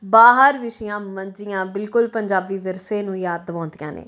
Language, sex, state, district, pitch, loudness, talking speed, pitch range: Punjabi, female, Punjab, Kapurthala, 195 Hz, -19 LUFS, 145 wpm, 185-220 Hz